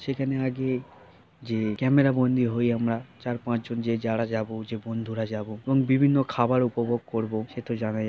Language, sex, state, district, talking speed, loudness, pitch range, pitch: Bengali, male, West Bengal, Jhargram, 180 wpm, -26 LUFS, 115-130 Hz, 120 Hz